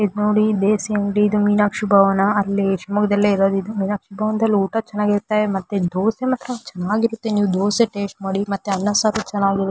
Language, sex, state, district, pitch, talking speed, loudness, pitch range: Kannada, female, Karnataka, Shimoga, 205 Hz, 165 wpm, -19 LUFS, 195-215 Hz